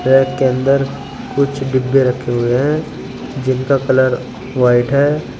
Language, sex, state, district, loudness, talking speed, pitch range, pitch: Hindi, male, Uttar Pradesh, Shamli, -15 LUFS, 135 wpm, 125-140 Hz, 130 Hz